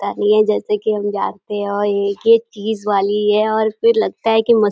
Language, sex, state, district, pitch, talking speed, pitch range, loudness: Hindi, female, Uttar Pradesh, Deoria, 210 Hz, 265 wpm, 205-220 Hz, -17 LUFS